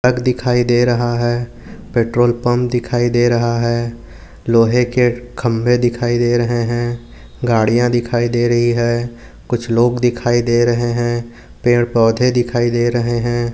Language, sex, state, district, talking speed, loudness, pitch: Hindi, male, Maharashtra, Aurangabad, 155 wpm, -16 LUFS, 120 Hz